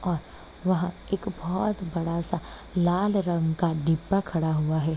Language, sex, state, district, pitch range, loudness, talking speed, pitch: Hindi, female, Bihar, East Champaran, 165-185 Hz, -27 LUFS, 155 wpm, 175 Hz